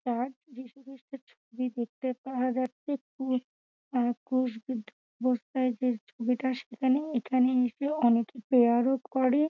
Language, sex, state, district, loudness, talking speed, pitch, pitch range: Bengali, female, West Bengal, Dakshin Dinajpur, -29 LUFS, 130 wpm, 255 Hz, 245-265 Hz